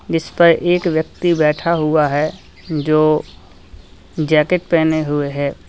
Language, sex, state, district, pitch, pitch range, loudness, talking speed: Hindi, male, Uttar Pradesh, Lalitpur, 155 Hz, 145-165 Hz, -16 LUFS, 125 wpm